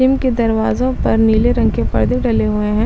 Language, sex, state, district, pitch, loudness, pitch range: Hindi, female, Chhattisgarh, Raigarh, 225 Hz, -15 LUFS, 220-255 Hz